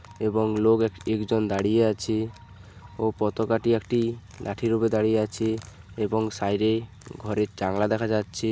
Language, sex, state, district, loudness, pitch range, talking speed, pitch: Bengali, male, West Bengal, Paschim Medinipur, -25 LUFS, 105-115 Hz, 135 wpm, 110 Hz